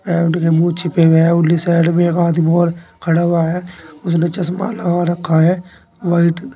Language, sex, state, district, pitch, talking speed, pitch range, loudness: Hindi, male, Uttar Pradesh, Saharanpur, 170 Hz, 165 wpm, 165-175 Hz, -15 LUFS